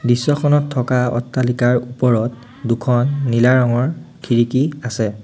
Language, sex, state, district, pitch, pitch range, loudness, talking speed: Assamese, male, Assam, Sonitpur, 125 Hz, 120-135 Hz, -17 LUFS, 105 wpm